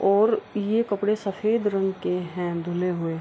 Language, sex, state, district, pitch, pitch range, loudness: Hindi, female, Bihar, Kishanganj, 195 Hz, 180-210 Hz, -25 LUFS